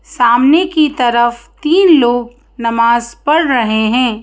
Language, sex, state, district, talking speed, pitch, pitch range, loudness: Hindi, female, Madhya Pradesh, Bhopal, 130 wpm, 245 Hz, 235-300 Hz, -12 LUFS